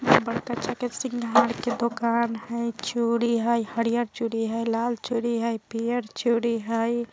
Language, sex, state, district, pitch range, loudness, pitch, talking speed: Bajjika, male, Bihar, Vaishali, 230-235 Hz, -26 LUFS, 235 Hz, 145 wpm